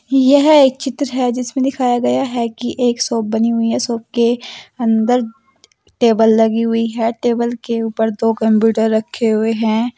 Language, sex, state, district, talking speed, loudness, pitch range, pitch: Hindi, female, Uttar Pradesh, Saharanpur, 175 wpm, -15 LUFS, 225-250 Hz, 235 Hz